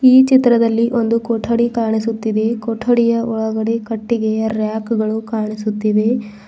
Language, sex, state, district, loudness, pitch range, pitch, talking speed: Kannada, female, Karnataka, Bidar, -17 LUFS, 220-235 Hz, 225 Hz, 90 wpm